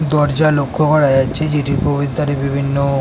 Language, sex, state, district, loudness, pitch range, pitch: Bengali, male, West Bengal, North 24 Parganas, -15 LUFS, 140-150 Hz, 145 Hz